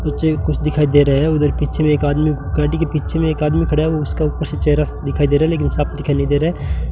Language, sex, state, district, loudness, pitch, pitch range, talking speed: Hindi, male, Rajasthan, Bikaner, -17 LUFS, 150 Hz, 145-155 Hz, 280 wpm